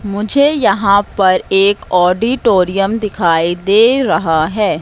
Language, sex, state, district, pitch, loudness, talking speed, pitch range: Hindi, female, Madhya Pradesh, Katni, 200 Hz, -12 LUFS, 110 wpm, 180-215 Hz